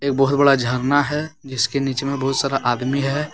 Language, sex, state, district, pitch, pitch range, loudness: Hindi, male, Jharkhand, Deoghar, 135 Hz, 135-140 Hz, -19 LUFS